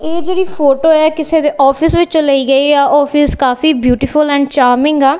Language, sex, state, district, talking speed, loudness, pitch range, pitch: Punjabi, female, Punjab, Kapurthala, 195 wpm, -11 LUFS, 275-315 Hz, 290 Hz